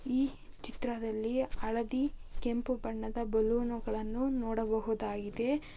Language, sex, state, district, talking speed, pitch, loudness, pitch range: Kannada, female, Karnataka, Bijapur, 75 wpm, 235 Hz, -35 LUFS, 220-255 Hz